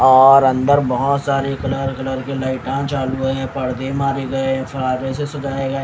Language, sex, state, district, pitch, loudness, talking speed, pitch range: Hindi, male, Haryana, Rohtak, 135 Hz, -18 LUFS, 185 wpm, 130-135 Hz